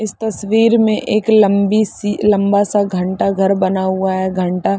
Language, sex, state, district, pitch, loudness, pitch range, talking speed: Hindi, female, Chhattisgarh, Balrampur, 200 Hz, -15 LUFS, 190-215 Hz, 190 wpm